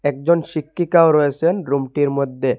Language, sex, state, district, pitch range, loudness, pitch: Bengali, male, Assam, Hailakandi, 140-170 Hz, -18 LUFS, 150 Hz